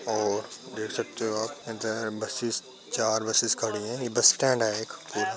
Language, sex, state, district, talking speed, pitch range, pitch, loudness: Hindi, male, Bihar, Begusarai, 190 wpm, 110-120 Hz, 110 Hz, -27 LUFS